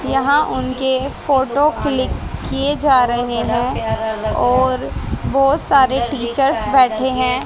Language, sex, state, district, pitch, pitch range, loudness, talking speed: Hindi, female, Haryana, Jhajjar, 260 Hz, 250-275 Hz, -16 LUFS, 110 wpm